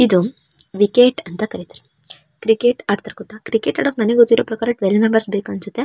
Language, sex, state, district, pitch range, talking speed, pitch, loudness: Kannada, female, Karnataka, Shimoga, 205-235 Hz, 165 wpm, 220 Hz, -17 LUFS